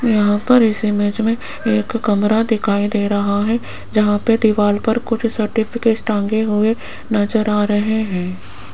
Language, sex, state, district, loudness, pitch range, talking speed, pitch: Hindi, female, Rajasthan, Jaipur, -17 LUFS, 205-225 Hz, 160 wpm, 215 Hz